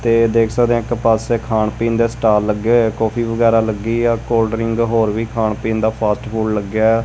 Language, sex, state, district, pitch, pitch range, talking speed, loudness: Punjabi, male, Punjab, Kapurthala, 115 Hz, 110-115 Hz, 220 wpm, -16 LUFS